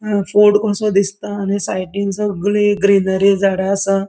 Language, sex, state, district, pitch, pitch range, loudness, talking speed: Konkani, male, Goa, North and South Goa, 200 Hz, 195-205 Hz, -16 LUFS, 145 wpm